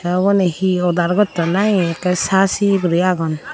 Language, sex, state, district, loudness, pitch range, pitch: Chakma, female, Tripura, Dhalai, -16 LUFS, 175-195 Hz, 180 Hz